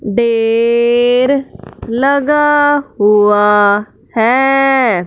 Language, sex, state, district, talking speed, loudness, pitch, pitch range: Hindi, female, Punjab, Fazilka, 45 wpm, -12 LUFS, 235 Hz, 215-270 Hz